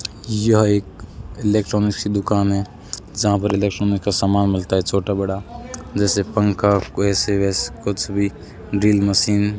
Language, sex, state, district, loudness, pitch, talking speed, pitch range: Hindi, male, Rajasthan, Bikaner, -19 LUFS, 100 Hz, 155 wpm, 100-105 Hz